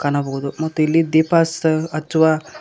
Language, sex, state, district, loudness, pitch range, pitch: Kannada, male, Karnataka, Koppal, -18 LUFS, 155-160 Hz, 160 Hz